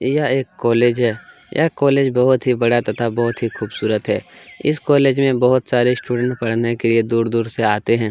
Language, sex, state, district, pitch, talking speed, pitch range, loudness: Hindi, male, Chhattisgarh, Kabirdham, 120 Hz, 205 wpm, 115-130 Hz, -18 LUFS